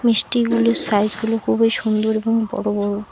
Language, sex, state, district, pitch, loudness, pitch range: Bengali, female, West Bengal, Alipurduar, 225 Hz, -18 LUFS, 215-230 Hz